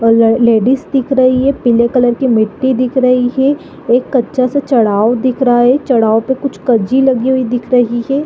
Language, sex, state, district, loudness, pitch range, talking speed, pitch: Hindi, female, Chhattisgarh, Bilaspur, -12 LUFS, 235-265 Hz, 210 wpm, 250 Hz